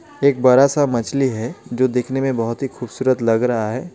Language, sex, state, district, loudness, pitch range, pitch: Hindi, male, West Bengal, Alipurduar, -18 LUFS, 120-135 Hz, 130 Hz